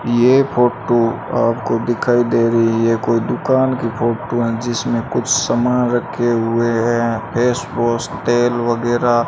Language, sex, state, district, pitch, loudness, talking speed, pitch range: Hindi, male, Rajasthan, Bikaner, 120 Hz, -17 LUFS, 135 wpm, 115-120 Hz